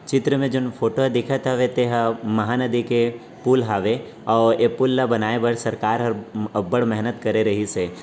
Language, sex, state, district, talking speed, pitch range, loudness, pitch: Chhattisgarhi, male, Chhattisgarh, Raigarh, 195 wpm, 110-125 Hz, -21 LUFS, 120 Hz